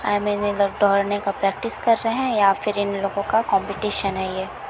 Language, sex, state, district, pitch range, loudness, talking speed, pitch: Hindi, female, Chhattisgarh, Bilaspur, 200-215 Hz, -22 LUFS, 240 wpm, 205 Hz